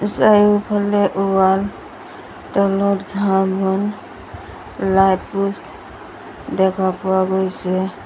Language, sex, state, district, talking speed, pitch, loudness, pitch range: Assamese, female, Assam, Sonitpur, 75 wpm, 195 Hz, -17 LUFS, 190-200 Hz